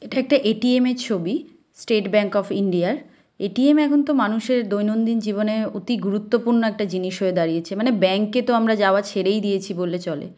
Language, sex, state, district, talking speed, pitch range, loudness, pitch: Bengali, female, West Bengal, Kolkata, 185 wpm, 195-245 Hz, -21 LUFS, 210 Hz